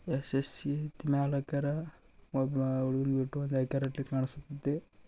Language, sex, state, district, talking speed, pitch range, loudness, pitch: Kannada, male, Karnataka, Bijapur, 95 wpm, 135-145 Hz, -33 LUFS, 140 Hz